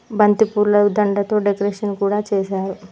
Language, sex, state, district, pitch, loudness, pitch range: Telugu, female, Telangana, Mahabubabad, 205 Hz, -18 LUFS, 200-210 Hz